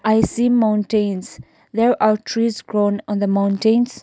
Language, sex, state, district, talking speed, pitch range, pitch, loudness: English, female, Nagaland, Kohima, 150 wpm, 205-230 Hz, 215 Hz, -18 LUFS